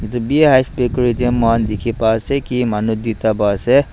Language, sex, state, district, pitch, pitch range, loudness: Nagamese, male, Nagaland, Dimapur, 115 Hz, 110-125 Hz, -16 LUFS